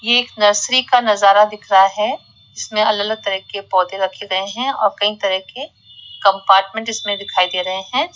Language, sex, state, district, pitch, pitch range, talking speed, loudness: Hindi, female, Rajasthan, Jaipur, 205 Hz, 195-220 Hz, 200 wpm, -16 LUFS